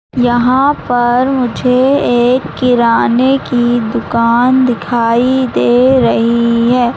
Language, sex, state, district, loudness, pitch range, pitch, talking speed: Hindi, female, Madhya Pradesh, Katni, -11 LUFS, 235-255 Hz, 245 Hz, 95 wpm